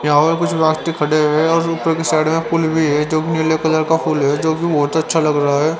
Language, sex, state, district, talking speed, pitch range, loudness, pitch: Hindi, male, Haryana, Rohtak, 270 wpm, 150-160 Hz, -16 LUFS, 160 Hz